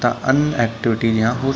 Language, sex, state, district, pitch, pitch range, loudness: Hindi, male, Uttar Pradesh, Budaun, 120 Hz, 115-135 Hz, -18 LUFS